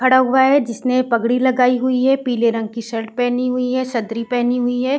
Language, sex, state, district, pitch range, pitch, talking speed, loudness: Hindi, female, Uttar Pradesh, Varanasi, 235-255 Hz, 250 Hz, 230 wpm, -17 LUFS